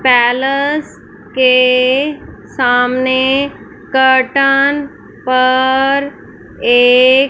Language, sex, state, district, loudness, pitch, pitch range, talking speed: Hindi, female, Punjab, Fazilka, -12 LUFS, 260 Hz, 255-275 Hz, 50 wpm